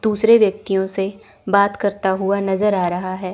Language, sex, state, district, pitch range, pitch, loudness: Hindi, female, Chandigarh, Chandigarh, 190-205 Hz, 200 Hz, -18 LUFS